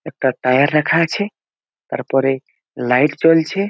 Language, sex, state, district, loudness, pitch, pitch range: Bengali, male, West Bengal, Malda, -17 LUFS, 150 Hz, 135-165 Hz